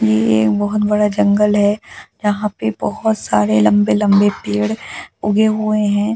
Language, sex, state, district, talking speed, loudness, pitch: Hindi, female, Delhi, New Delhi, 165 wpm, -16 LUFS, 205 Hz